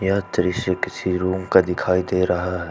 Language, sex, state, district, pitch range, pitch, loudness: Hindi, male, Jharkhand, Ranchi, 90-95 Hz, 90 Hz, -21 LUFS